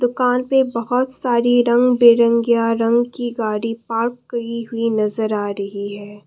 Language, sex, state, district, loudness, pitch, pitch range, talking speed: Hindi, female, Assam, Kamrup Metropolitan, -18 LUFS, 235 Hz, 225-245 Hz, 155 wpm